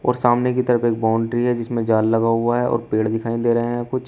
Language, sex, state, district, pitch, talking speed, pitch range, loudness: Hindi, male, Uttar Pradesh, Shamli, 120 Hz, 280 wpm, 115-120 Hz, -19 LUFS